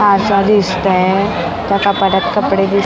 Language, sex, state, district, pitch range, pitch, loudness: Marathi, female, Maharashtra, Mumbai Suburban, 190-200 Hz, 195 Hz, -13 LUFS